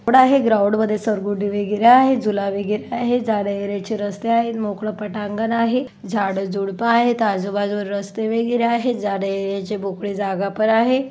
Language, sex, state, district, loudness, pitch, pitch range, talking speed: Marathi, female, Maharashtra, Solapur, -20 LUFS, 210 Hz, 200-230 Hz, 145 wpm